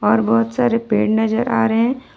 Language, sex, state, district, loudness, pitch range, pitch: Hindi, female, Jharkhand, Ranchi, -17 LUFS, 215-230 Hz, 225 Hz